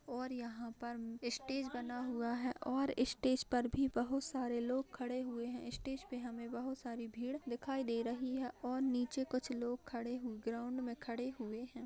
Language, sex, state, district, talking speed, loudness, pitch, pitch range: Hindi, female, Bihar, Vaishali, 190 wpm, -41 LUFS, 245 Hz, 235-260 Hz